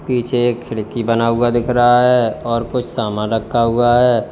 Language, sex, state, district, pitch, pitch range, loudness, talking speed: Hindi, male, Uttar Pradesh, Lalitpur, 120 Hz, 115-125 Hz, -16 LUFS, 195 wpm